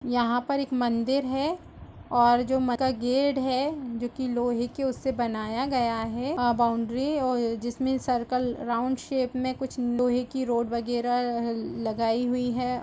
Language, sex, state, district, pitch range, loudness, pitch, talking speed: Hindi, female, Uttar Pradesh, Jalaun, 240-260 Hz, -27 LUFS, 245 Hz, 175 wpm